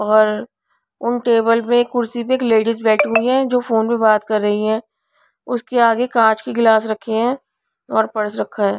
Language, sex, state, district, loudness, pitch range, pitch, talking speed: Hindi, female, Punjab, Pathankot, -17 LUFS, 220-240 Hz, 225 Hz, 200 wpm